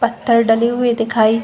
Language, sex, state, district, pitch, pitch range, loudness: Hindi, female, Uttar Pradesh, Jalaun, 230 Hz, 225-235 Hz, -15 LUFS